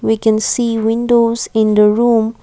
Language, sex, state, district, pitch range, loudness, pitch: English, female, Assam, Kamrup Metropolitan, 220-235 Hz, -13 LUFS, 225 Hz